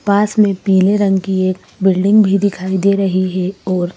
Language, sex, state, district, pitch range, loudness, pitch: Hindi, female, Madhya Pradesh, Bhopal, 185-200 Hz, -14 LUFS, 195 Hz